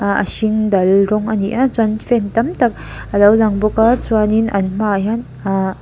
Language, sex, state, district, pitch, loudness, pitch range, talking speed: Mizo, female, Mizoram, Aizawl, 215 Hz, -15 LUFS, 200-225 Hz, 185 wpm